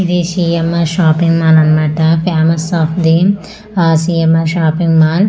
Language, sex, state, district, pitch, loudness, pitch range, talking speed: Telugu, female, Andhra Pradesh, Manyam, 165 Hz, -12 LUFS, 160-175 Hz, 145 wpm